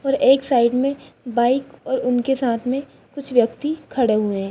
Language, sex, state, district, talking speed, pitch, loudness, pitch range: Hindi, female, Bihar, Purnia, 185 wpm, 255 Hz, -20 LUFS, 240-270 Hz